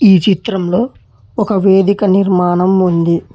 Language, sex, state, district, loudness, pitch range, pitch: Telugu, male, Telangana, Hyderabad, -12 LUFS, 180-200 Hz, 195 Hz